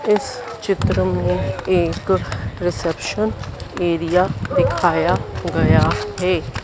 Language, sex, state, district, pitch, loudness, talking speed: Hindi, female, Madhya Pradesh, Dhar, 135 Hz, -19 LUFS, 80 wpm